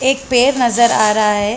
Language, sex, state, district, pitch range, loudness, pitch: Hindi, female, Chhattisgarh, Balrampur, 215-260 Hz, -13 LUFS, 235 Hz